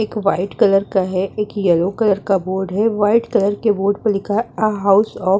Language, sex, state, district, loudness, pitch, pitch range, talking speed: Hindi, female, Uttar Pradesh, Muzaffarnagar, -17 LUFS, 200 Hz, 190-215 Hz, 245 wpm